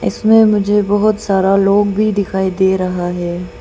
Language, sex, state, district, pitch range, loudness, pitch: Hindi, female, Arunachal Pradesh, Papum Pare, 185-210 Hz, -14 LUFS, 195 Hz